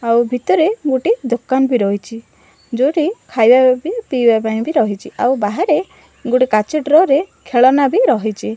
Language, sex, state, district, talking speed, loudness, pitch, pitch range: Odia, female, Odisha, Malkangiri, 160 wpm, -15 LUFS, 250 Hz, 225-275 Hz